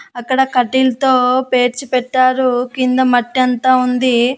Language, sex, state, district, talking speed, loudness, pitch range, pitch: Telugu, female, Andhra Pradesh, Annamaya, 95 wpm, -14 LUFS, 250-260 Hz, 255 Hz